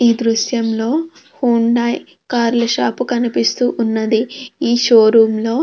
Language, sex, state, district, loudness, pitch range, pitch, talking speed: Telugu, female, Andhra Pradesh, Krishna, -15 LUFS, 225-245 Hz, 235 Hz, 130 wpm